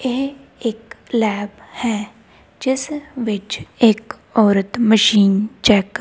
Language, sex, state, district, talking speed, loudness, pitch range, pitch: Punjabi, female, Punjab, Kapurthala, 110 wpm, -18 LUFS, 205-250 Hz, 225 Hz